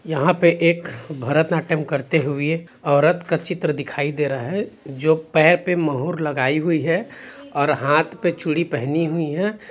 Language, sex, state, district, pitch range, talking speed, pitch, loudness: Hindi, male, Chhattisgarh, Bilaspur, 145-170 Hz, 165 wpm, 160 Hz, -20 LUFS